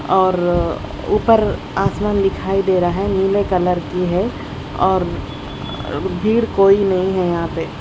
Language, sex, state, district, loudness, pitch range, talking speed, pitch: Hindi, female, Odisha, Khordha, -17 LUFS, 180-200 Hz, 145 wpm, 190 Hz